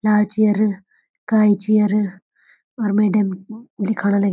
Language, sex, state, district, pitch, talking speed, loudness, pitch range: Garhwali, female, Uttarakhand, Uttarkashi, 210 Hz, 110 wpm, -18 LUFS, 200-215 Hz